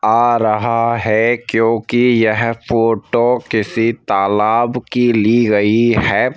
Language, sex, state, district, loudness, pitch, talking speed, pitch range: Hindi, male, Madhya Pradesh, Bhopal, -14 LUFS, 115 Hz, 115 wpm, 110-120 Hz